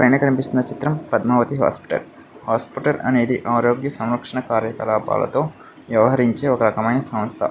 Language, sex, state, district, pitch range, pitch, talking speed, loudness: Telugu, male, Andhra Pradesh, Visakhapatnam, 115-130 Hz, 125 Hz, 120 wpm, -20 LUFS